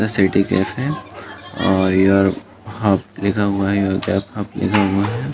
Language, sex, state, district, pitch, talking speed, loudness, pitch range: Hindi, male, Uttar Pradesh, Jalaun, 100 Hz, 90 wpm, -18 LUFS, 95-105 Hz